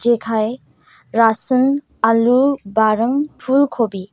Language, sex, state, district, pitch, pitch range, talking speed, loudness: Garo, female, Meghalaya, West Garo Hills, 235 Hz, 220-265 Hz, 75 wpm, -16 LUFS